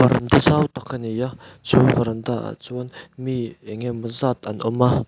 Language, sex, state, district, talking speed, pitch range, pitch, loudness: Mizo, male, Mizoram, Aizawl, 190 wpm, 115-130 Hz, 125 Hz, -22 LUFS